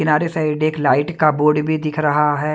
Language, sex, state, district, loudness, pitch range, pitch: Hindi, male, Maharashtra, Mumbai Suburban, -17 LUFS, 150-155 Hz, 150 Hz